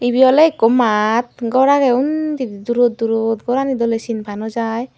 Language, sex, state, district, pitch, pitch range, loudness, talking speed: Chakma, female, Tripura, Unakoti, 240 Hz, 225-260 Hz, -16 LUFS, 155 wpm